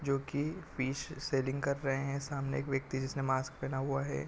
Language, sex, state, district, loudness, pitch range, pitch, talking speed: Hindi, male, Chhattisgarh, Korba, -35 LUFS, 135-140 Hz, 135 Hz, 225 wpm